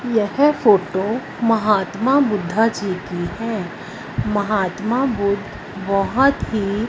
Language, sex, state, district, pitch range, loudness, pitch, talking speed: Hindi, female, Punjab, Fazilka, 195-230 Hz, -19 LUFS, 215 Hz, 105 wpm